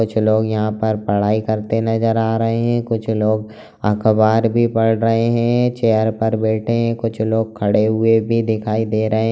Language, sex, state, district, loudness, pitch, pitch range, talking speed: Hindi, male, Chhattisgarh, Raigarh, -17 LUFS, 110 Hz, 110-115 Hz, 195 wpm